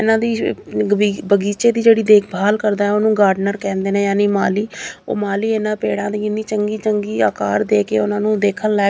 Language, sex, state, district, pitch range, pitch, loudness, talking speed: Punjabi, female, Chandigarh, Chandigarh, 200-215 Hz, 205 Hz, -17 LUFS, 200 wpm